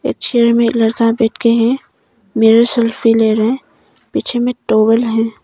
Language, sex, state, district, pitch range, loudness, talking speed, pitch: Hindi, female, Arunachal Pradesh, Papum Pare, 225-240 Hz, -13 LUFS, 175 wpm, 230 Hz